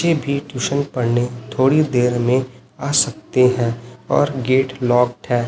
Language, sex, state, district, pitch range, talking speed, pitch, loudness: Hindi, male, Chhattisgarh, Raipur, 125-140 Hz, 155 wpm, 125 Hz, -18 LUFS